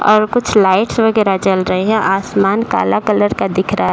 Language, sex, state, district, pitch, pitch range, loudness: Hindi, female, Uttar Pradesh, Deoria, 205 Hz, 195-220 Hz, -14 LUFS